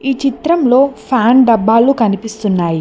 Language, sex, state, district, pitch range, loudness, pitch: Telugu, female, Telangana, Mahabubabad, 220-270 Hz, -12 LUFS, 240 Hz